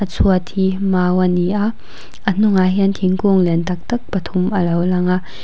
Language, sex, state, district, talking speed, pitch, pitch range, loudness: Mizo, female, Mizoram, Aizawl, 165 wpm, 185 Hz, 180-195 Hz, -17 LUFS